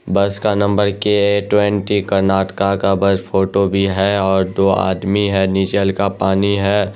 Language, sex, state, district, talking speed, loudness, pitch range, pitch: Hindi, male, Bihar, Araria, 170 wpm, -16 LUFS, 95-100 Hz, 100 Hz